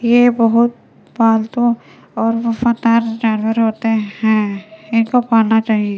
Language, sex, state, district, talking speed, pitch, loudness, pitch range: Hindi, female, Delhi, New Delhi, 110 wpm, 225 Hz, -15 LUFS, 220-230 Hz